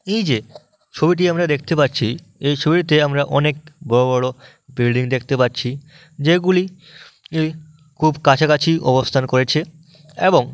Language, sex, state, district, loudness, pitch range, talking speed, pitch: Bengali, male, West Bengal, Dakshin Dinajpur, -18 LUFS, 130-160 Hz, 100 wpm, 150 Hz